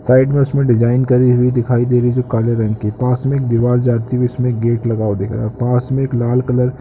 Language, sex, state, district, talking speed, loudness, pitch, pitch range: Hindi, male, Uttarakhand, Tehri Garhwal, 290 wpm, -15 LUFS, 125 Hz, 115-125 Hz